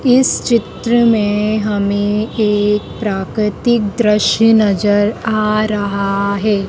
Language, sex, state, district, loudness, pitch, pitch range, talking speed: Hindi, female, Madhya Pradesh, Dhar, -14 LUFS, 210 Hz, 205-225 Hz, 100 wpm